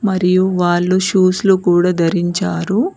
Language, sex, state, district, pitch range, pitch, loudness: Telugu, female, Telangana, Mahabubabad, 175-190 Hz, 185 Hz, -14 LUFS